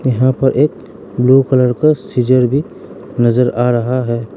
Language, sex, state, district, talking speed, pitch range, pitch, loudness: Hindi, male, Arunachal Pradesh, Lower Dibang Valley, 165 wpm, 120-135 Hz, 125 Hz, -14 LUFS